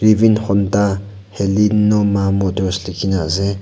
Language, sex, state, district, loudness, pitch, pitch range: Nagamese, male, Nagaland, Kohima, -16 LUFS, 100 Hz, 95-105 Hz